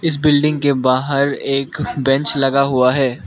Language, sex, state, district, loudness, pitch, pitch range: Hindi, male, Arunachal Pradesh, Lower Dibang Valley, -16 LUFS, 140 Hz, 135-145 Hz